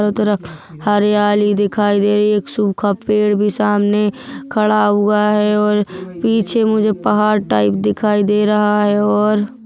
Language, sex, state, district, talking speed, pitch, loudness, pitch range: Hindi, female, Chhattisgarh, Bilaspur, 135 wpm, 210 Hz, -15 LUFS, 205-210 Hz